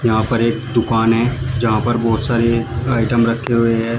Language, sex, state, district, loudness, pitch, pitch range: Hindi, male, Uttar Pradesh, Shamli, -16 LUFS, 115 Hz, 115-120 Hz